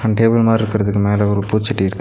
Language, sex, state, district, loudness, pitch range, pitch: Tamil, male, Tamil Nadu, Nilgiris, -16 LUFS, 100-115 Hz, 105 Hz